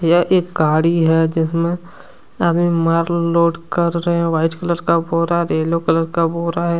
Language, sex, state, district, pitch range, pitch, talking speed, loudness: Hindi, male, Jharkhand, Deoghar, 165-170 Hz, 170 Hz, 175 wpm, -17 LUFS